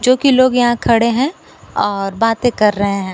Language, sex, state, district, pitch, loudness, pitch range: Hindi, female, Bihar, Kaimur, 230 Hz, -14 LUFS, 205-255 Hz